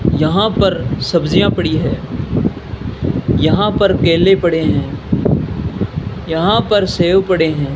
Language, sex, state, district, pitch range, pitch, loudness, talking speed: Hindi, male, Rajasthan, Bikaner, 160-200 Hz, 175 Hz, -15 LUFS, 115 wpm